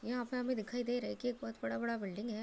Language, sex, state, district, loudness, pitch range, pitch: Hindi, female, Uttar Pradesh, Deoria, -39 LUFS, 205-245 Hz, 235 Hz